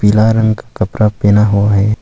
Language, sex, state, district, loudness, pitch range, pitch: Hindi, male, Arunachal Pradesh, Longding, -12 LUFS, 105-110 Hz, 105 Hz